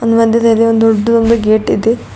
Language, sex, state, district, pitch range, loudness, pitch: Kannada, female, Karnataka, Bidar, 225-230 Hz, -11 LUFS, 230 Hz